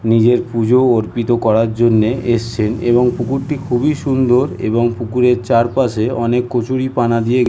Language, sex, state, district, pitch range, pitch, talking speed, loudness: Bengali, male, West Bengal, North 24 Parganas, 115-125 Hz, 120 Hz, 130 wpm, -15 LUFS